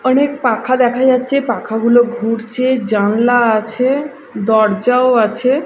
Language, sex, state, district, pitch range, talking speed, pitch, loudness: Bengali, female, Odisha, Malkangiri, 225-255 Hz, 105 wpm, 245 Hz, -14 LUFS